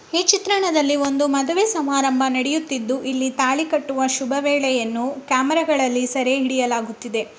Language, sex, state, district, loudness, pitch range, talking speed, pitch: Kannada, male, Karnataka, Bellary, -20 LUFS, 260-300 Hz, 95 wpm, 270 Hz